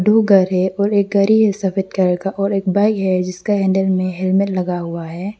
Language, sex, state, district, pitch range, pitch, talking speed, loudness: Hindi, female, Arunachal Pradesh, Lower Dibang Valley, 185-200 Hz, 190 Hz, 235 wpm, -17 LUFS